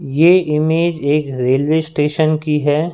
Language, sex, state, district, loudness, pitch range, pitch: Hindi, male, Madhya Pradesh, Katni, -15 LUFS, 145-160 Hz, 150 Hz